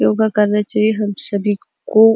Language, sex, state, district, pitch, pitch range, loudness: Hindi, female, Chhattisgarh, Bastar, 210 Hz, 205-215 Hz, -16 LUFS